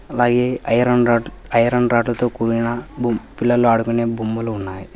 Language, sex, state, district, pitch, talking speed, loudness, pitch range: Telugu, male, Telangana, Hyderabad, 120 Hz, 135 wpm, -18 LUFS, 115-120 Hz